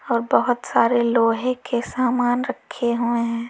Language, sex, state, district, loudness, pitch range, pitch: Hindi, female, Uttar Pradesh, Lalitpur, -21 LUFS, 235-250 Hz, 240 Hz